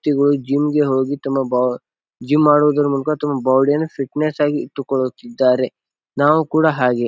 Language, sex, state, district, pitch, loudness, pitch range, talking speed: Kannada, male, Karnataka, Bijapur, 140 Hz, -17 LUFS, 130-150 Hz, 155 wpm